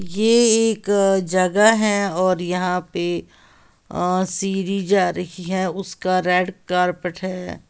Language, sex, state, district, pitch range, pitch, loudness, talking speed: Hindi, female, Uttar Pradesh, Lalitpur, 180-195 Hz, 185 Hz, -20 LUFS, 125 wpm